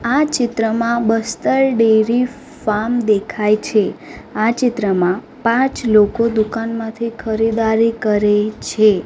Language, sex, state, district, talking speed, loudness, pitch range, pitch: Gujarati, female, Gujarat, Gandhinagar, 100 wpm, -16 LUFS, 215-235 Hz, 225 Hz